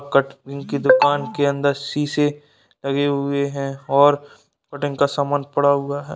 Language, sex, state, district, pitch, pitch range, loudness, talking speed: Hindi, male, Bihar, Purnia, 140 Hz, 140-145 Hz, -20 LUFS, 155 wpm